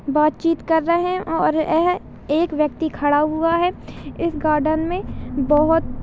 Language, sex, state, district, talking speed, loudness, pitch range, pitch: Hindi, female, Chhattisgarh, Balrampur, 160 wpm, -20 LUFS, 300-335 Hz, 320 Hz